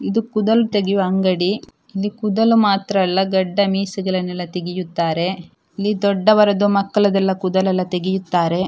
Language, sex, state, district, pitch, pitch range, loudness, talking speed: Kannada, female, Karnataka, Dakshina Kannada, 195 Hz, 185-205 Hz, -18 LUFS, 115 wpm